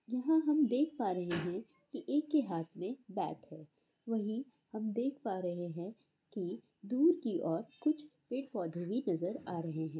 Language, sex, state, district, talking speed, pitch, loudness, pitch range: Hindi, female, Andhra Pradesh, Guntur, 180 wpm, 215 Hz, -36 LUFS, 175-265 Hz